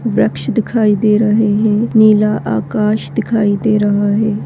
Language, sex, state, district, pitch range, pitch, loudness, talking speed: Hindi, female, Chhattisgarh, Bastar, 210-220 Hz, 215 Hz, -13 LUFS, 150 wpm